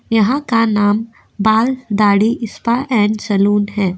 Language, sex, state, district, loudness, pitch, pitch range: Hindi, female, Uttar Pradesh, Jyotiba Phule Nagar, -15 LUFS, 215 Hz, 205-230 Hz